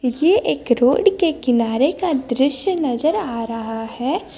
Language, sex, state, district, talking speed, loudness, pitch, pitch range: Hindi, female, Jharkhand, Garhwa, 150 wpm, -19 LUFS, 265 Hz, 240-335 Hz